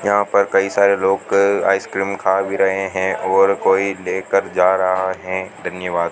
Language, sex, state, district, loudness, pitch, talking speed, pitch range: Hindi, male, Rajasthan, Bikaner, -17 LUFS, 95 Hz, 165 wpm, 95-100 Hz